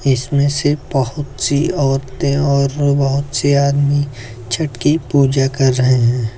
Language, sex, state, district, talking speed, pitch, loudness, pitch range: Hindi, male, Uttar Pradesh, Lucknow, 140 wpm, 140 Hz, -16 LUFS, 130-145 Hz